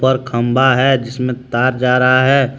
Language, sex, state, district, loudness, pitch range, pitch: Hindi, male, Jharkhand, Deoghar, -14 LUFS, 125-130 Hz, 130 Hz